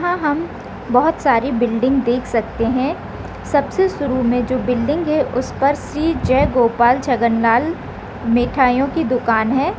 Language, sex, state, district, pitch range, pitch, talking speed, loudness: Hindi, female, Rajasthan, Nagaur, 240-290 Hz, 255 Hz, 155 wpm, -17 LUFS